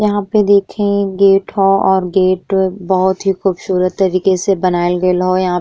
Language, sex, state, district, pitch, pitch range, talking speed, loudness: Bhojpuri, female, Uttar Pradesh, Ghazipur, 190 Hz, 185-195 Hz, 180 wpm, -14 LUFS